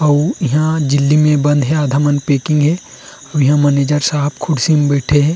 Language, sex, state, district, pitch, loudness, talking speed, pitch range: Chhattisgarhi, male, Chhattisgarh, Rajnandgaon, 145 Hz, -14 LUFS, 215 wpm, 145-150 Hz